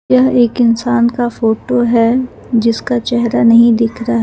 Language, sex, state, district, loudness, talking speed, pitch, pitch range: Hindi, female, Jharkhand, Palamu, -12 LUFS, 155 wpm, 235 Hz, 230-245 Hz